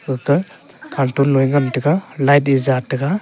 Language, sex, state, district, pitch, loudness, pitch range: Wancho, male, Arunachal Pradesh, Longding, 140 Hz, -17 LUFS, 135-145 Hz